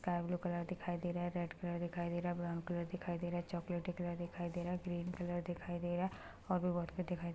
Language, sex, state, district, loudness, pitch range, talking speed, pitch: Hindi, female, Chhattisgarh, Rajnandgaon, -41 LUFS, 175-180 Hz, 320 wpm, 175 Hz